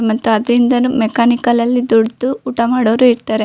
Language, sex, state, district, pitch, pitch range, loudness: Kannada, female, Karnataka, Shimoga, 240 Hz, 225-250 Hz, -13 LUFS